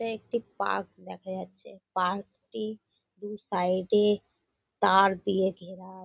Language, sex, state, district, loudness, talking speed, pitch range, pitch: Bengali, female, West Bengal, North 24 Parganas, -28 LUFS, 130 wpm, 185-210 Hz, 195 Hz